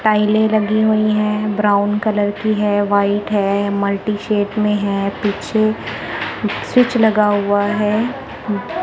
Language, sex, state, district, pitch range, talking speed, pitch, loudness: Hindi, female, Punjab, Kapurthala, 205-215 Hz, 130 wpm, 210 Hz, -17 LUFS